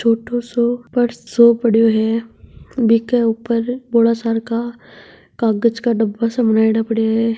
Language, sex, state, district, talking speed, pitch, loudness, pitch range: Marwari, male, Rajasthan, Nagaur, 145 wpm, 230 Hz, -17 LUFS, 225-235 Hz